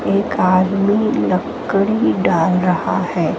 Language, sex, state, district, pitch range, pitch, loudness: Hindi, female, Haryana, Jhajjar, 185-205 Hz, 195 Hz, -16 LUFS